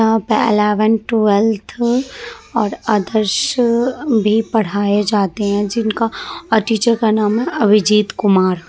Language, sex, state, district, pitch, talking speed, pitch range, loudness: Hindi, female, Bihar, Vaishali, 220 Hz, 140 wpm, 210-230 Hz, -15 LUFS